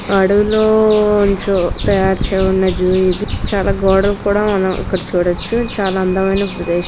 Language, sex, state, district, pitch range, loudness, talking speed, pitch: Telugu, female, Andhra Pradesh, Guntur, 185-205 Hz, -14 LUFS, 105 wpm, 195 Hz